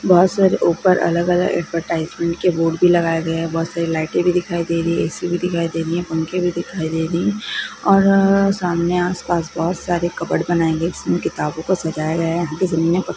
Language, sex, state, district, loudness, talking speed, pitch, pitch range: Maithili, female, Bihar, Begusarai, -18 LUFS, 215 wpm, 170 Hz, 165-180 Hz